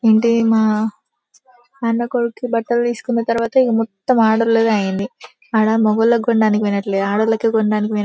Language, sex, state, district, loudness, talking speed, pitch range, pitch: Telugu, female, Telangana, Karimnagar, -17 LUFS, 120 wpm, 215-235 Hz, 225 Hz